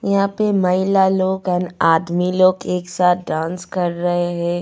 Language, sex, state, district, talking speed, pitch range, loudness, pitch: Hindi, female, Goa, North and South Goa, 170 wpm, 175-190 Hz, -18 LUFS, 180 Hz